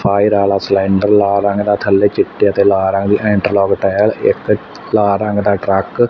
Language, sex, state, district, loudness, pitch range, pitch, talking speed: Punjabi, male, Punjab, Fazilka, -13 LUFS, 100-105 Hz, 100 Hz, 195 wpm